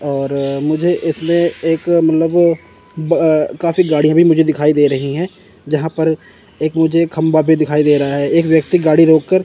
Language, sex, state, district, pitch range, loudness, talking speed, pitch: Hindi, male, Chandigarh, Chandigarh, 150-170 Hz, -14 LUFS, 185 wpm, 160 Hz